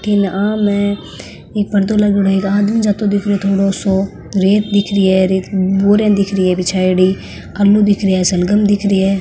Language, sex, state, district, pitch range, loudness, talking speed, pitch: Marwari, female, Rajasthan, Nagaur, 190-205 Hz, -14 LUFS, 195 wpm, 200 Hz